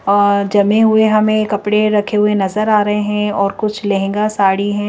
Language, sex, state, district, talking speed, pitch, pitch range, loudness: Hindi, female, Madhya Pradesh, Bhopal, 195 wpm, 210 Hz, 200-215 Hz, -14 LUFS